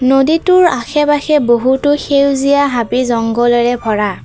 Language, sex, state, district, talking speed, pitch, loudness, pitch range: Assamese, female, Assam, Kamrup Metropolitan, 115 wpm, 265 Hz, -12 LUFS, 240-290 Hz